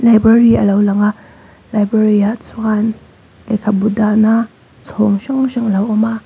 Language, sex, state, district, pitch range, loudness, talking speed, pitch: Mizo, female, Mizoram, Aizawl, 210-225 Hz, -14 LUFS, 155 wpm, 215 Hz